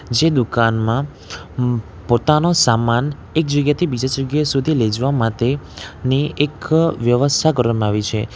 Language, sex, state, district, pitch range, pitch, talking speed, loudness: Gujarati, male, Gujarat, Valsad, 115-145 Hz, 130 Hz, 120 wpm, -17 LUFS